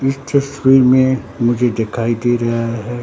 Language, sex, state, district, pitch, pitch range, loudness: Hindi, male, Bihar, Katihar, 120 Hz, 115-130 Hz, -15 LUFS